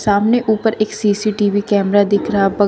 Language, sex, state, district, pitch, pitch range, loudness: Hindi, female, Uttar Pradesh, Shamli, 205 Hz, 200-215 Hz, -16 LUFS